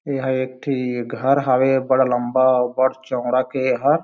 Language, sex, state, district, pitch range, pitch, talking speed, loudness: Chhattisgarhi, male, Chhattisgarh, Sarguja, 125-130 Hz, 130 Hz, 180 wpm, -19 LUFS